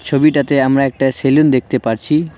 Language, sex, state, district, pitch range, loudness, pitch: Bengali, male, West Bengal, Cooch Behar, 130-150 Hz, -14 LUFS, 140 Hz